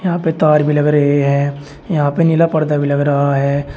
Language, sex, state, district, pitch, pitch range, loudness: Hindi, male, Uttar Pradesh, Shamli, 145 Hz, 140-160 Hz, -14 LUFS